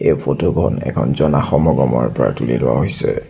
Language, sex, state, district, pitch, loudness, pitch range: Assamese, male, Assam, Sonitpur, 65 Hz, -16 LUFS, 60-80 Hz